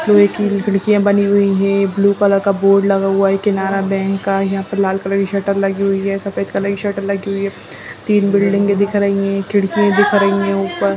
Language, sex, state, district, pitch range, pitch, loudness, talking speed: Hindi, female, Uttarakhand, Uttarkashi, 195-200 Hz, 200 Hz, -15 LUFS, 230 wpm